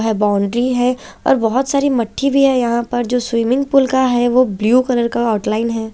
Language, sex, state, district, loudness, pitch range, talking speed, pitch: Hindi, female, Chandigarh, Chandigarh, -16 LUFS, 225-260 Hz, 210 wpm, 245 Hz